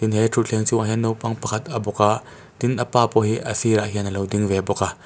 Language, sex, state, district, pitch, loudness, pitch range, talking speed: Mizo, male, Mizoram, Aizawl, 110 Hz, -21 LUFS, 105-115 Hz, 285 wpm